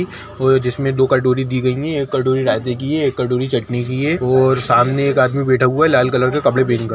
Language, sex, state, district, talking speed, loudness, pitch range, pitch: Hindi, male, Chhattisgarh, Sukma, 270 wpm, -16 LUFS, 125-135 Hz, 130 Hz